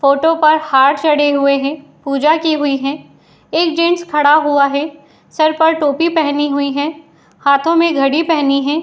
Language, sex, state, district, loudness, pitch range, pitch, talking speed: Hindi, female, Uttar Pradesh, Etah, -14 LUFS, 280-320 Hz, 295 Hz, 205 wpm